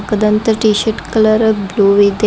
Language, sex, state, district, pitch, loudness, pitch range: Kannada, female, Karnataka, Bidar, 210 Hz, -13 LUFS, 200-220 Hz